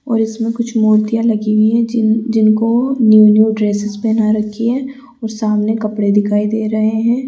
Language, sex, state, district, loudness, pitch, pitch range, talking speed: Hindi, female, Rajasthan, Jaipur, -14 LUFS, 220 Hz, 215-230 Hz, 180 wpm